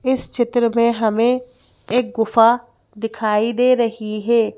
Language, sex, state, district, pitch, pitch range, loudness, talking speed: Hindi, female, Madhya Pradesh, Bhopal, 235 Hz, 225-245 Hz, -18 LUFS, 130 wpm